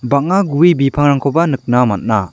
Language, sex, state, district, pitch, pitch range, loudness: Garo, male, Meghalaya, South Garo Hills, 140 Hz, 125-155 Hz, -13 LUFS